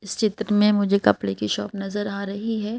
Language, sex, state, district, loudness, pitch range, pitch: Hindi, female, Madhya Pradesh, Bhopal, -23 LUFS, 200-215 Hz, 205 Hz